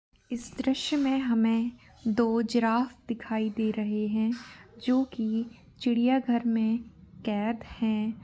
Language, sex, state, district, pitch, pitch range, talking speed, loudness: Hindi, female, Jharkhand, Jamtara, 230 Hz, 220-240 Hz, 125 wpm, -29 LUFS